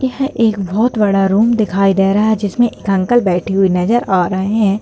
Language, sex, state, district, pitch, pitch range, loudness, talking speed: Hindi, female, Bihar, Jamui, 205 Hz, 195-225 Hz, -14 LUFS, 225 wpm